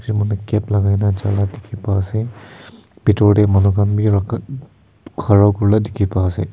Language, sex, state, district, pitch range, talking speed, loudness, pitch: Nagamese, male, Nagaland, Kohima, 100-110 Hz, 185 wpm, -17 LUFS, 105 Hz